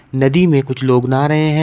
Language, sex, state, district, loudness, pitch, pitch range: Hindi, male, Uttar Pradesh, Shamli, -14 LUFS, 135 Hz, 130-155 Hz